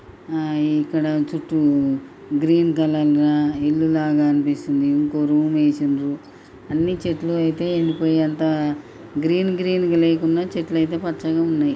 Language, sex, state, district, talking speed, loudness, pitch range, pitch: Telugu, male, Karnataka, Dharwad, 120 wpm, -20 LUFS, 150-165 Hz, 155 Hz